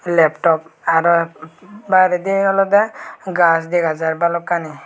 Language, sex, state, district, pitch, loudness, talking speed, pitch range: Chakma, male, Tripura, West Tripura, 170 Hz, -16 LUFS, 100 wpm, 165-185 Hz